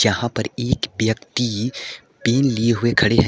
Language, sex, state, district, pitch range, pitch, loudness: Hindi, male, Jharkhand, Garhwa, 110-125 Hz, 120 Hz, -20 LUFS